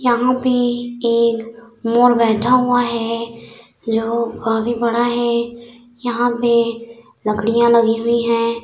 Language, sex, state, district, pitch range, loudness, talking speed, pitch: Hindi, female, Bihar, Madhepura, 230-240 Hz, -17 LUFS, 120 wpm, 235 Hz